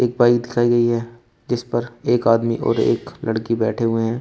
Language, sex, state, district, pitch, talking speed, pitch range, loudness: Hindi, male, Uttar Pradesh, Shamli, 120 Hz, 200 wpm, 115-120 Hz, -19 LUFS